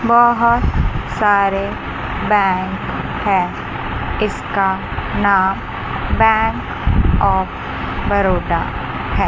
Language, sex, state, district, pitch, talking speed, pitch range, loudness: Hindi, female, Chandigarh, Chandigarh, 205 Hz, 65 wpm, 195-225 Hz, -17 LUFS